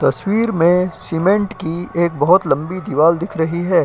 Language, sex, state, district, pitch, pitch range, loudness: Hindi, male, Uttar Pradesh, Jyotiba Phule Nagar, 175 Hz, 165-190 Hz, -17 LUFS